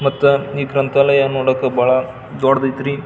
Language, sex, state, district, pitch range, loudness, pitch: Kannada, male, Karnataka, Belgaum, 130-140 Hz, -16 LUFS, 135 Hz